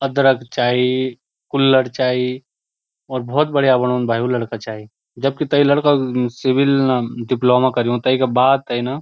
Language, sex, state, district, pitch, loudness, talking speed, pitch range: Garhwali, male, Uttarakhand, Uttarkashi, 130 Hz, -17 LUFS, 155 wpm, 125-135 Hz